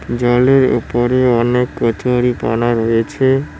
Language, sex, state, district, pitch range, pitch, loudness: Bengali, male, West Bengal, Cooch Behar, 115-125 Hz, 120 Hz, -15 LUFS